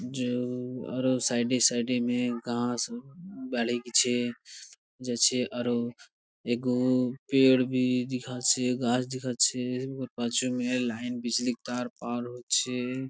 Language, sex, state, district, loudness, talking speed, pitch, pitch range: Bengali, male, West Bengal, Purulia, -28 LUFS, 110 wpm, 125 Hz, 120-125 Hz